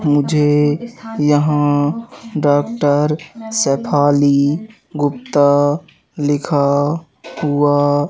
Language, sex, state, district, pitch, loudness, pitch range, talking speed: Hindi, male, Madhya Pradesh, Katni, 145 Hz, -16 LUFS, 145-155 Hz, 50 wpm